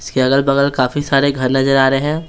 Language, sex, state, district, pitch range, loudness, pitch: Hindi, male, Bihar, Patna, 135-140 Hz, -15 LUFS, 135 Hz